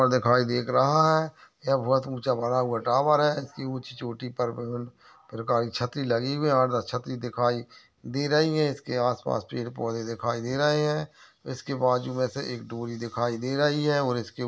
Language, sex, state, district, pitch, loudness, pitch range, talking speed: Hindi, male, Uttar Pradesh, Jyotiba Phule Nagar, 125 Hz, -27 LUFS, 120-140 Hz, 205 wpm